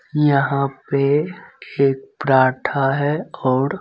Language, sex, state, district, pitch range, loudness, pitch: Hindi, male, Bihar, Begusarai, 135-150 Hz, -19 LUFS, 140 Hz